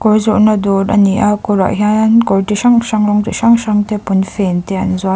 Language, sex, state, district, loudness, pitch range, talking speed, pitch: Mizo, female, Mizoram, Aizawl, -12 LUFS, 195-215 Hz, 230 wpm, 210 Hz